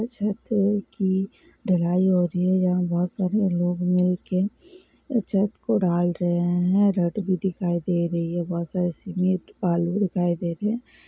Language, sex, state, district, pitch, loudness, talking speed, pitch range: Hindi, female, Karnataka, Belgaum, 185 Hz, -24 LUFS, 165 wpm, 175-205 Hz